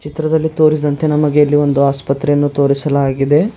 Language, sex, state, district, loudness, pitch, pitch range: Kannada, male, Karnataka, Bidar, -14 LUFS, 145 Hz, 140-155 Hz